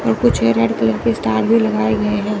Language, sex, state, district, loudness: Hindi, female, Chandigarh, Chandigarh, -16 LUFS